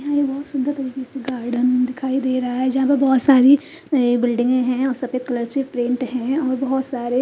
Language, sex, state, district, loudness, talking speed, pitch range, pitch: Hindi, female, Chandigarh, Chandigarh, -19 LUFS, 210 wpm, 250-270 Hz, 260 Hz